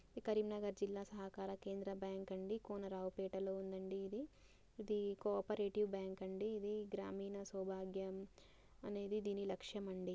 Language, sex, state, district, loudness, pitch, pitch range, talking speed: Telugu, female, Telangana, Karimnagar, -45 LUFS, 195 Hz, 190-205 Hz, 135 wpm